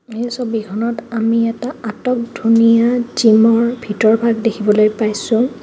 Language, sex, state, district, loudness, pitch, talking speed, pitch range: Assamese, female, Assam, Kamrup Metropolitan, -15 LUFS, 230 Hz, 115 wpm, 220-235 Hz